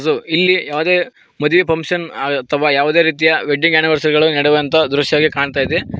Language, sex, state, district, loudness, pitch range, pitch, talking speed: Kannada, male, Karnataka, Koppal, -14 LUFS, 145-165 Hz, 155 Hz, 140 wpm